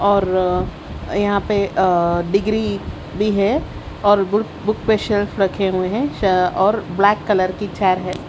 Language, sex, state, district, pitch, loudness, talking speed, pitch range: Hindi, female, Haryana, Charkhi Dadri, 200 Hz, -18 LUFS, 145 wpm, 185-205 Hz